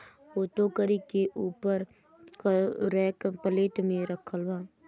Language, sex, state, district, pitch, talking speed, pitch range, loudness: Bhojpuri, female, Uttar Pradesh, Gorakhpur, 195 Hz, 125 wpm, 190-205 Hz, -30 LUFS